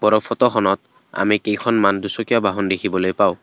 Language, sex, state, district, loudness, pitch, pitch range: Assamese, male, Assam, Kamrup Metropolitan, -19 LUFS, 105 Hz, 100-110 Hz